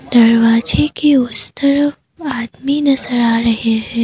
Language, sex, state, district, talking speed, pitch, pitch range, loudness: Hindi, female, Assam, Kamrup Metropolitan, 135 wpm, 240 Hz, 230-280 Hz, -14 LUFS